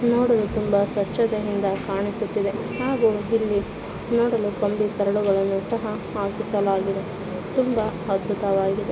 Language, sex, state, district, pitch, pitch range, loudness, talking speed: Kannada, female, Karnataka, Shimoga, 205 Hz, 195-220 Hz, -23 LUFS, 85 wpm